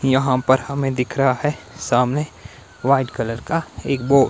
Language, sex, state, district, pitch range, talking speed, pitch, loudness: Hindi, male, Himachal Pradesh, Shimla, 125-140 Hz, 165 wpm, 130 Hz, -20 LUFS